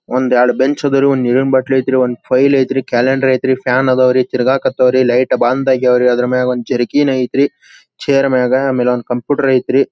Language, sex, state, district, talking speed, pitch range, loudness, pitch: Kannada, male, Karnataka, Belgaum, 170 wpm, 125-135 Hz, -13 LUFS, 130 Hz